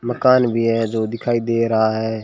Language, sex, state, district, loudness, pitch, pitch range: Hindi, male, Rajasthan, Bikaner, -18 LUFS, 115 Hz, 110-120 Hz